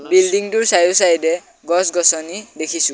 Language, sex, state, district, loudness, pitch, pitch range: Assamese, male, Assam, Sonitpur, -15 LUFS, 175 Hz, 165-205 Hz